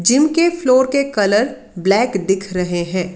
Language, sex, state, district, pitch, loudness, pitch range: Hindi, female, Karnataka, Bangalore, 205 Hz, -16 LUFS, 185-270 Hz